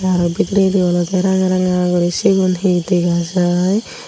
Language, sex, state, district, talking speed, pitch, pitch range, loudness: Chakma, female, Tripura, Unakoti, 145 wpm, 185 Hz, 175-190 Hz, -15 LUFS